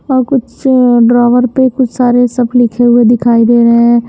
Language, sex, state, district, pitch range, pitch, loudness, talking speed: Hindi, female, Himachal Pradesh, Shimla, 235-250 Hz, 245 Hz, -9 LUFS, 190 wpm